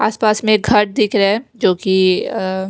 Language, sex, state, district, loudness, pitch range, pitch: Hindi, female, Bihar, West Champaran, -15 LUFS, 190-215 Hz, 210 Hz